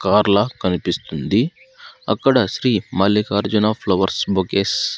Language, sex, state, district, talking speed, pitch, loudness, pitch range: Telugu, male, Andhra Pradesh, Sri Satya Sai, 110 wpm, 100 Hz, -18 LUFS, 95-110 Hz